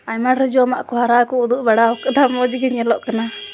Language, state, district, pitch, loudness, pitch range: Santali, Jharkhand, Sahebganj, 245 Hz, -17 LUFS, 230-255 Hz